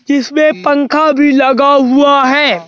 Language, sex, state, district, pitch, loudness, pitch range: Hindi, male, Madhya Pradesh, Bhopal, 285 Hz, -9 LUFS, 275-295 Hz